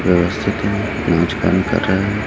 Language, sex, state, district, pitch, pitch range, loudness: Hindi, male, Chhattisgarh, Raipur, 100 Hz, 95-105 Hz, -17 LUFS